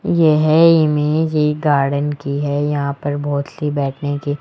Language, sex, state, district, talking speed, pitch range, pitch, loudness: Hindi, male, Rajasthan, Jaipur, 165 wpm, 145-155 Hz, 145 Hz, -17 LUFS